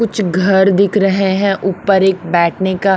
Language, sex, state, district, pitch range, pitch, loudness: Hindi, female, Haryana, Rohtak, 190-195 Hz, 195 Hz, -13 LUFS